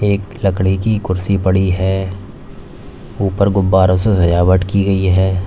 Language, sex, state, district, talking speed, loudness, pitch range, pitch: Hindi, male, Uttar Pradesh, Lalitpur, 145 wpm, -15 LUFS, 95-100 Hz, 95 Hz